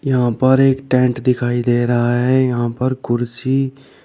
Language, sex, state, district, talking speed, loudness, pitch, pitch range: Hindi, male, Uttar Pradesh, Shamli, 175 wpm, -17 LUFS, 125 Hz, 120-130 Hz